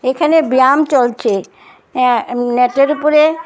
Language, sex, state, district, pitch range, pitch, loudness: Bengali, female, Assam, Hailakandi, 250-300 Hz, 260 Hz, -13 LUFS